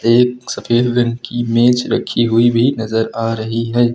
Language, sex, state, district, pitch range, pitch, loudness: Hindi, male, Uttar Pradesh, Lucknow, 115-120 Hz, 120 Hz, -15 LUFS